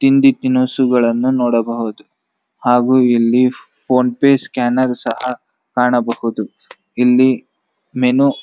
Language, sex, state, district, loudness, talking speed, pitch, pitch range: Kannada, male, Karnataka, Dharwad, -15 LUFS, 95 wpm, 125 Hz, 120-130 Hz